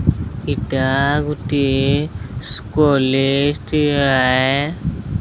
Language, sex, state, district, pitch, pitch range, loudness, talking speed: Odia, male, Odisha, Sambalpur, 135 Hz, 130-145 Hz, -18 LUFS, 60 wpm